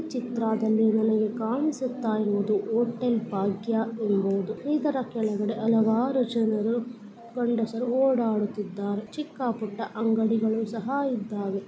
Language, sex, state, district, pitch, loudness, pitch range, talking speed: Kannada, female, Karnataka, Gulbarga, 225 Hz, -27 LUFS, 215-240 Hz, 100 wpm